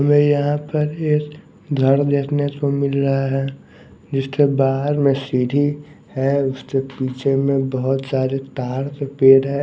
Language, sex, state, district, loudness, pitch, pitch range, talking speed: Hindi, male, Bihar, West Champaran, -19 LUFS, 140 Hz, 135-145 Hz, 150 wpm